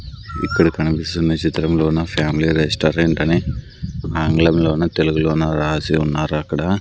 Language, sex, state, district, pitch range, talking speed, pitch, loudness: Telugu, male, Andhra Pradesh, Sri Satya Sai, 75-80 Hz, 95 wpm, 80 Hz, -18 LUFS